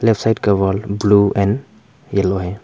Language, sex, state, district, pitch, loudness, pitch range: Hindi, male, Arunachal Pradesh, Papum Pare, 100 Hz, -17 LUFS, 100-110 Hz